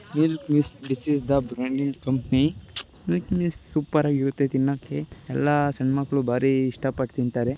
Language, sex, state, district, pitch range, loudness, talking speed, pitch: Kannada, male, Karnataka, Shimoga, 130-145 Hz, -25 LUFS, 135 wpm, 140 Hz